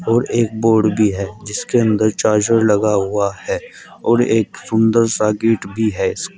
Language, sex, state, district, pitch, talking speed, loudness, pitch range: Hindi, male, Uttar Pradesh, Saharanpur, 110 Hz, 190 wpm, -16 LUFS, 105-115 Hz